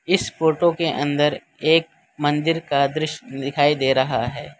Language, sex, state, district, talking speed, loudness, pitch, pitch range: Hindi, male, Gujarat, Valsad, 155 wpm, -21 LUFS, 150 Hz, 140-165 Hz